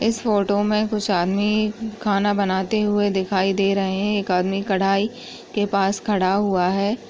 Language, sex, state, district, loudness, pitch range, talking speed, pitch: Hindi, female, Chhattisgarh, Sukma, -21 LUFS, 195-210 Hz, 170 wpm, 200 Hz